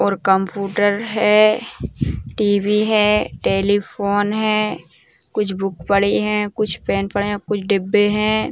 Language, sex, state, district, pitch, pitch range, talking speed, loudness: Hindi, female, Uttar Pradesh, Ghazipur, 205 Hz, 200-210 Hz, 125 wpm, -18 LUFS